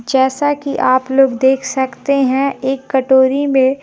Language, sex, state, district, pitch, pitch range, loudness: Hindi, female, Bihar, Kaimur, 265 Hz, 260-275 Hz, -14 LUFS